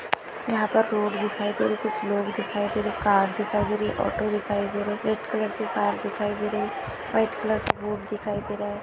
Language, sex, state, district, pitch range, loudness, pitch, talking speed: Hindi, female, Goa, North and South Goa, 205-215 Hz, -26 LUFS, 210 Hz, 230 wpm